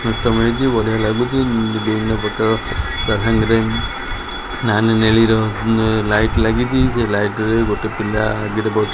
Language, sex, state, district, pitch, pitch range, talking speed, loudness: Odia, male, Odisha, Khordha, 110 Hz, 110-115 Hz, 105 wpm, -16 LUFS